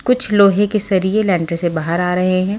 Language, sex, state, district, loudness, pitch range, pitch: Hindi, female, Maharashtra, Washim, -15 LUFS, 180-205 Hz, 190 Hz